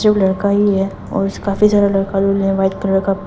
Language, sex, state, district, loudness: Hindi, female, Arunachal Pradesh, Papum Pare, -16 LUFS